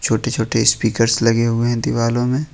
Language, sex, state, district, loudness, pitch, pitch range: Hindi, male, Jharkhand, Ranchi, -17 LUFS, 115 Hz, 115-120 Hz